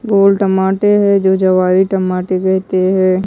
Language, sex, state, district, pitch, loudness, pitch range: Hindi, female, Odisha, Malkangiri, 190 Hz, -13 LUFS, 185-195 Hz